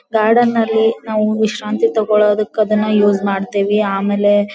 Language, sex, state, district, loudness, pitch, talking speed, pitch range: Kannada, female, Karnataka, Dharwad, -15 LUFS, 215 Hz, 120 wpm, 205-220 Hz